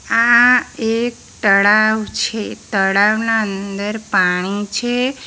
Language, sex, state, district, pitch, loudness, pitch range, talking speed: Gujarati, female, Gujarat, Valsad, 215 Hz, -16 LUFS, 200-230 Hz, 90 wpm